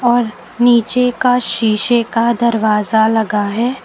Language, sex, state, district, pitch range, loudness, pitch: Hindi, female, Uttar Pradesh, Lucknow, 220-245 Hz, -14 LUFS, 235 Hz